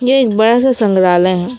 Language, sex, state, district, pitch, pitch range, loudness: Hindi, female, West Bengal, Alipurduar, 220 Hz, 185-250 Hz, -12 LUFS